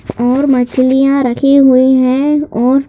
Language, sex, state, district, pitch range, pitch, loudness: Hindi, male, Madhya Pradesh, Bhopal, 255-275 Hz, 265 Hz, -10 LUFS